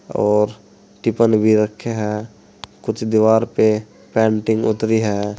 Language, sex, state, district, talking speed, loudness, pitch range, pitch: Hindi, male, Uttar Pradesh, Saharanpur, 120 wpm, -18 LUFS, 105-110 Hz, 110 Hz